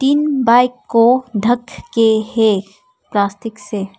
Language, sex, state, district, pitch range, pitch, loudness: Hindi, female, Arunachal Pradesh, Papum Pare, 210-250 Hz, 230 Hz, -15 LUFS